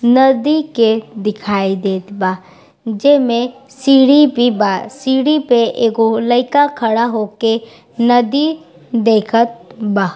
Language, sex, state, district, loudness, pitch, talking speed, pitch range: Bhojpuri, female, Bihar, East Champaran, -14 LUFS, 235 Hz, 105 wpm, 215-265 Hz